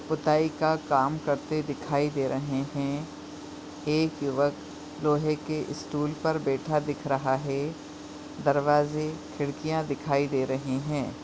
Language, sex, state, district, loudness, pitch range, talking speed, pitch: Hindi, female, Goa, North and South Goa, -28 LUFS, 140-155 Hz, 135 wpm, 150 Hz